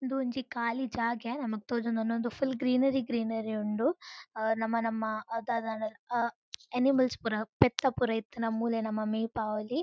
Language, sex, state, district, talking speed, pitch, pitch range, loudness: Tulu, female, Karnataka, Dakshina Kannada, 145 wpm, 230 Hz, 225-255 Hz, -31 LUFS